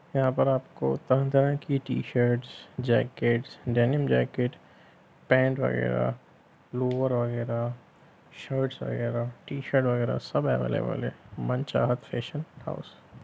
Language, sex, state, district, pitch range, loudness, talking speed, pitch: Hindi, male, Bihar, Lakhisarai, 120-135 Hz, -28 LUFS, 105 wpm, 125 Hz